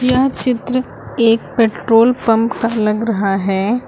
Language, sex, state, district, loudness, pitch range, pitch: Hindi, female, Uttar Pradesh, Lucknow, -15 LUFS, 220-250 Hz, 230 Hz